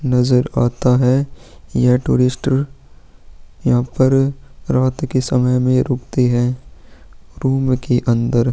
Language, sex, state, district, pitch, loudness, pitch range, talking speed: Hindi, male, Uttarakhand, Tehri Garhwal, 125 Hz, -17 LUFS, 120-130 Hz, 110 wpm